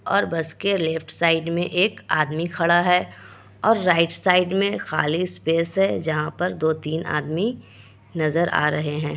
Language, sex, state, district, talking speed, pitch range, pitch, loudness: Hindi, female, Bihar, Kishanganj, 165 wpm, 150-180 Hz, 165 Hz, -22 LUFS